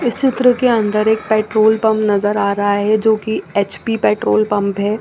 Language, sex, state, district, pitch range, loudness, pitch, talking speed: Hindi, female, Chandigarh, Chandigarh, 205-220 Hz, -15 LUFS, 215 Hz, 205 wpm